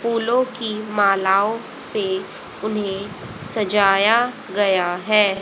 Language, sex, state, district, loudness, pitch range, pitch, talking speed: Hindi, female, Haryana, Jhajjar, -20 LUFS, 195-225 Hz, 210 Hz, 90 wpm